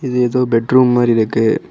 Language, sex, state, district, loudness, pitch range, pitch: Tamil, male, Tamil Nadu, Kanyakumari, -14 LUFS, 115-125 Hz, 125 Hz